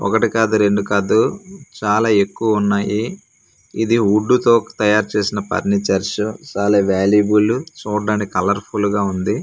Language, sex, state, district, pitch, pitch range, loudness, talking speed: Telugu, male, Andhra Pradesh, Manyam, 105 Hz, 100-110 Hz, -17 LUFS, 125 wpm